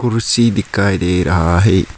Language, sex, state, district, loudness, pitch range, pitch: Hindi, male, Arunachal Pradesh, Lower Dibang Valley, -14 LUFS, 90-115 Hz, 100 Hz